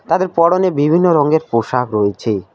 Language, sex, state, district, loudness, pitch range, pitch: Bengali, male, West Bengal, Alipurduar, -15 LUFS, 110-170 Hz, 145 Hz